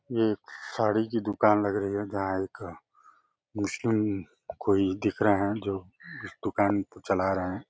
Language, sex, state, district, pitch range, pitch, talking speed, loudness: Hindi, male, Uttar Pradesh, Deoria, 95-110 Hz, 100 Hz, 165 wpm, -28 LUFS